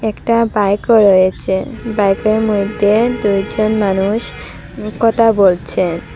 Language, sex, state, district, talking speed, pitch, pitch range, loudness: Bengali, female, Assam, Hailakandi, 85 wpm, 210 Hz, 195-220 Hz, -14 LUFS